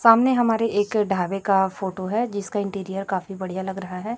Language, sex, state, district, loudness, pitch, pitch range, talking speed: Hindi, female, Chhattisgarh, Raipur, -23 LUFS, 195 Hz, 190-225 Hz, 200 wpm